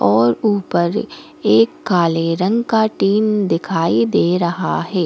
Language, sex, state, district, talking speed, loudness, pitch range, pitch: Hindi, female, Goa, North and South Goa, 130 wpm, -16 LUFS, 165-205 Hz, 175 Hz